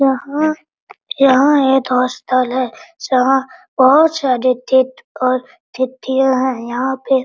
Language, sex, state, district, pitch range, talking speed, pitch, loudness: Hindi, female, Bihar, Araria, 255-275 Hz, 125 wpm, 260 Hz, -15 LUFS